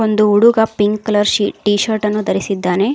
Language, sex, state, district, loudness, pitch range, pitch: Kannada, female, Karnataka, Koppal, -15 LUFS, 205-220 Hz, 210 Hz